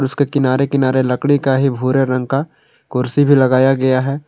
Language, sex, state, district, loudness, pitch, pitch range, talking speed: Hindi, male, Jharkhand, Garhwa, -15 LUFS, 135 Hz, 130-140 Hz, 195 wpm